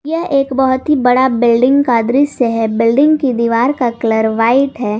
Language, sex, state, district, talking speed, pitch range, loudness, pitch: Hindi, female, Jharkhand, Garhwa, 190 wpm, 230-275 Hz, -13 LUFS, 250 Hz